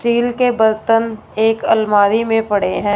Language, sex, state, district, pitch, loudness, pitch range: Hindi, female, Punjab, Fazilka, 225 Hz, -15 LUFS, 215-230 Hz